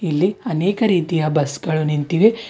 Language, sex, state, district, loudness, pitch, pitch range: Kannada, female, Karnataka, Bidar, -19 LUFS, 170 Hz, 155-205 Hz